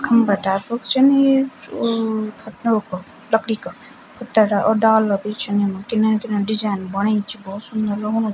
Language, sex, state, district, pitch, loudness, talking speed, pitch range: Garhwali, female, Uttarakhand, Tehri Garhwal, 215 Hz, -19 LUFS, 185 wpm, 205-225 Hz